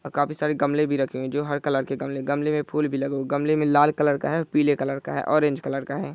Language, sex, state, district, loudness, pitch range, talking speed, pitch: Hindi, male, Bihar, Saran, -24 LUFS, 135-150 Hz, 310 wpm, 145 Hz